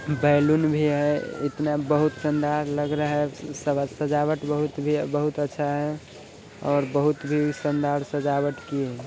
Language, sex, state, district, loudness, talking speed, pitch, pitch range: Hindi, male, Bihar, Sitamarhi, -25 LUFS, 130 wpm, 150 Hz, 145-150 Hz